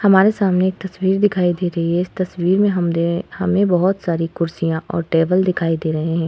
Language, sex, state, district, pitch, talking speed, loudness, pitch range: Hindi, female, Uttar Pradesh, Etah, 180 Hz, 220 wpm, -18 LUFS, 165-190 Hz